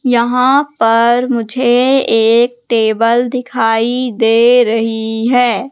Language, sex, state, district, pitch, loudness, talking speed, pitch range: Hindi, female, Madhya Pradesh, Katni, 240 Hz, -12 LUFS, 95 wpm, 225-250 Hz